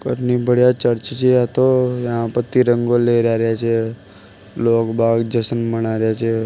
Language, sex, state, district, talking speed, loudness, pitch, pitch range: Marwari, male, Rajasthan, Nagaur, 165 wpm, -17 LUFS, 115 Hz, 115-125 Hz